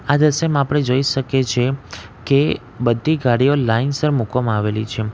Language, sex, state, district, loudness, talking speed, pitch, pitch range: Gujarati, male, Gujarat, Valsad, -18 LUFS, 150 wpm, 130 Hz, 115-140 Hz